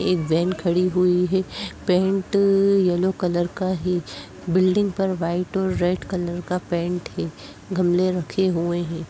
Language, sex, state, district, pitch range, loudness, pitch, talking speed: Hindi, female, Uttar Pradesh, Jyotiba Phule Nagar, 175-185 Hz, -22 LUFS, 180 Hz, 150 wpm